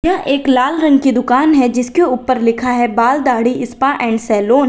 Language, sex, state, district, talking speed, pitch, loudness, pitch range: Hindi, female, Uttar Pradesh, Lalitpur, 215 wpm, 255 Hz, -13 LUFS, 240-275 Hz